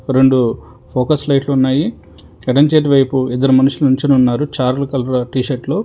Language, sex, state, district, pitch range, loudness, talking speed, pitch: Telugu, male, Telangana, Hyderabad, 125-140 Hz, -14 LUFS, 155 wpm, 130 Hz